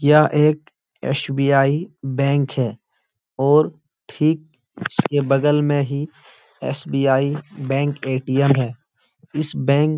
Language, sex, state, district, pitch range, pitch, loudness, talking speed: Hindi, male, Uttar Pradesh, Etah, 135-150 Hz, 140 Hz, -20 LUFS, 110 wpm